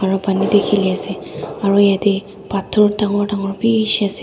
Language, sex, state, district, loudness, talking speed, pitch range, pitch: Nagamese, female, Nagaland, Dimapur, -17 LUFS, 155 wpm, 195-205 Hz, 200 Hz